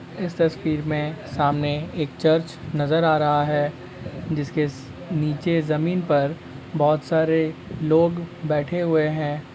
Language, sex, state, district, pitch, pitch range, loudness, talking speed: Hindi, male, Uttar Pradesh, Ghazipur, 155 Hz, 145-165 Hz, -23 LUFS, 130 wpm